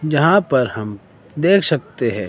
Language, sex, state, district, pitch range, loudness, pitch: Hindi, male, Himachal Pradesh, Shimla, 110-160 Hz, -16 LUFS, 135 Hz